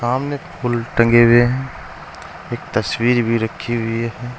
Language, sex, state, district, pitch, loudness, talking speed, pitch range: Hindi, male, Uttar Pradesh, Saharanpur, 120 Hz, -18 LUFS, 150 wpm, 115-125 Hz